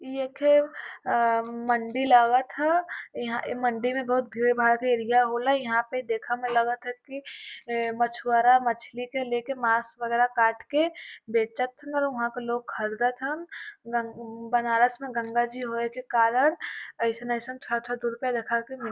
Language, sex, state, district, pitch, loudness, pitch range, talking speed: Bhojpuri, female, Uttar Pradesh, Varanasi, 240 Hz, -26 LUFS, 235-255 Hz, 170 wpm